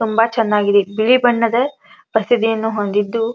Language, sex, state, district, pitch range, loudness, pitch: Kannada, female, Karnataka, Dharwad, 210-235 Hz, -16 LUFS, 225 Hz